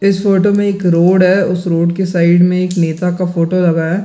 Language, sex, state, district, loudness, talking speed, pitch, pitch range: Hindi, male, Bihar, Gaya, -12 LUFS, 265 wpm, 180 Hz, 170-190 Hz